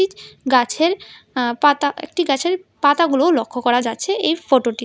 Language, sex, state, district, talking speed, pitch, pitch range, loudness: Bengali, female, Tripura, West Tripura, 135 wpm, 285 Hz, 250-340 Hz, -18 LUFS